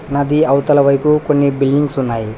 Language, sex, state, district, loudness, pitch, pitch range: Telugu, male, Telangana, Hyderabad, -14 LUFS, 140 Hz, 135-150 Hz